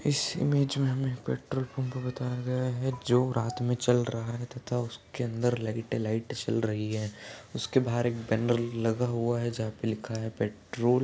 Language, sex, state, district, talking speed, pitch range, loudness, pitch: Hindi, male, Uttar Pradesh, Ghazipur, 195 wpm, 115-125 Hz, -30 LUFS, 120 Hz